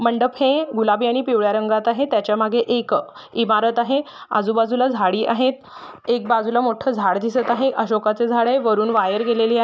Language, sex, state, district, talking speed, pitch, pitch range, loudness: Marathi, female, Maharashtra, Solapur, 175 wpm, 235 Hz, 220-250 Hz, -19 LUFS